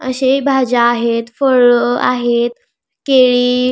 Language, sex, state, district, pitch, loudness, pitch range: Marathi, female, Maharashtra, Pune, 250 Hz, -13 LUFS, 240-260 Hz